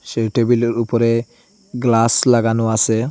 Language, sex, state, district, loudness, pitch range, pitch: Bengali, male, Assam, Hailakandi, -16 LUFS, 115-120 Hz, 115 Hz